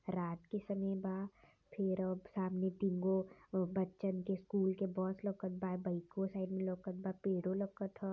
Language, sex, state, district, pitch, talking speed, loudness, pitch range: Hindi, male, Uttar Pradesh, Varanasi, 190 Hz, 170 wpm, -40 LUFS, 185-195 Hz